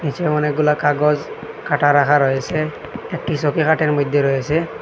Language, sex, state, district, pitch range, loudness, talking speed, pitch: Bengali, male, Assam, Hailakandi, 145-155 Hz, -18 LUFS, 125 wpm, 150 Hz